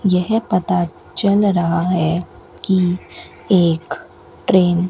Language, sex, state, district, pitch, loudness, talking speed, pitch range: Hindi, female, Rajasthan, Bikaner, 180 Hz, -17 LUFS, 110 wpm, 175-190 Hz